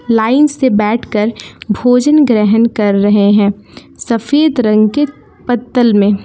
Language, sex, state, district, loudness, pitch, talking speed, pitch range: Hindi, female, Jharkhand, Palamu, -12 LUFS, 230 Hz, 125 wpm, 210-255 Hz